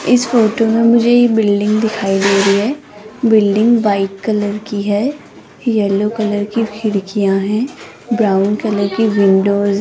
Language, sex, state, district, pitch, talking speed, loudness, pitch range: Hindi, female, Rajasthan, Jaipur, 210 Hz, 155 wpm, -14 LUFS, 200-230 Hz